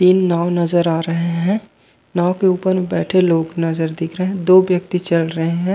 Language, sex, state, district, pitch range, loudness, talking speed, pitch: Chhattisgarhi, male, Chhattisgarh, Raigarh, 165-185 Hz, -17 LUFS, 220 wpm, 175 Hz